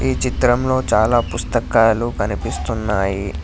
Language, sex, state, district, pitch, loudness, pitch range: Telugu, male, Telangana, Hyderabad, 115 Hz, -18 LUFS, 100-120 Hz